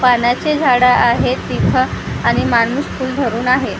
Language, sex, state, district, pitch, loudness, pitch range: Marathi, female, Maharashtra, Gondia, 250 Hz, -15 LUFS, 245-270 Hz